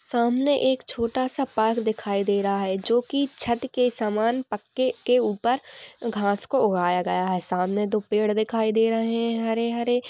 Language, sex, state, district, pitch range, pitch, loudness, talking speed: Hindi, female, Uttar Pradesh, Jyotiba Phule Nagar, 210-245 Hz, 230 Hz, -24 LUFS, 180 wpm